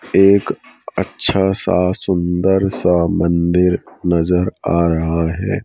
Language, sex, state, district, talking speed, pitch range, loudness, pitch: Hindi, male, Madhya Pradesh, Bhopal, 105 wpm, 85-95 Hz, -16 LUFS, 90 Hz